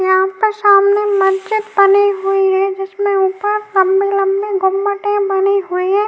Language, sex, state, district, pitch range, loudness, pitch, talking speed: Hindi, female, Uttar Pradesh, Jyotiba Phule Nagar, 385-405 Hz, -14 LUFS, 395 Hz, 150 wpm